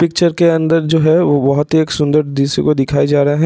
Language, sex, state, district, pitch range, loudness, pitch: Hindi, male, Jharkhand, Jamtara, 145-165 Hz, -13 LUFS, 150 Hz